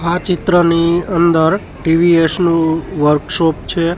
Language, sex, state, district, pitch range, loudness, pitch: Gujarati, male, Gujarat, Gandhinagar, 160-175 Hz, -14 LUFS, 170 Hz